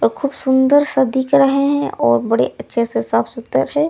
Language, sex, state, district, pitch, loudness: Hindi, female, Bihar, Darbhanga, 265 Hz, -16 LUFS